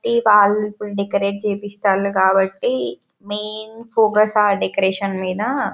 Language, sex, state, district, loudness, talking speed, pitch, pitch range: Telugu, female, Telangana, Karimnagar, -18 LUFS, 115 wpm, 205 Hz, 195-215 Hz